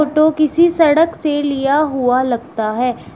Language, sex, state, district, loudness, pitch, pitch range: Hindi, female, Uttar Pradesh, Shamli, -15 LUFS, 290 Hz, 250-310 Hz